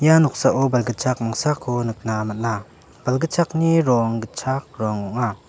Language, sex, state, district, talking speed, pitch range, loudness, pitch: Garo, male, Meghalaya, West Garo Hills, 120 wpm, 110-135 Hz, -21 LUFS, 120 Hz